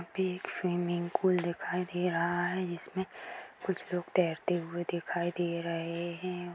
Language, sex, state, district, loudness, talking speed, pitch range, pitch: Hindi, male, Chhattisgarh, Bastar, -33 LUFS, 165 wpm, 170-180 Hz, 175 Hz